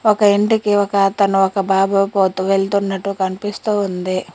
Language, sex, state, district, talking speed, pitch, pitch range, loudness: Telugu, female, Telangana, Mahabubabad, 125 wpm, 195 Hz, 195-205 Hz, -17 LUFS